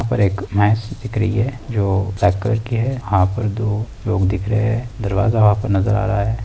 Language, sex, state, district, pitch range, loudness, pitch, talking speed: Hindi, male, Uttar Pradesh, Etah, 100-115 Hz, -19 LUFS, 105 Hz, 205 wpm